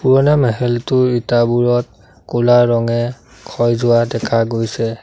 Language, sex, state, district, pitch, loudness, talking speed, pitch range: Assamese, male, Assam, Sonitpur, 120 Hz, -15 LUFS, 95 wpm, 115-120 Hz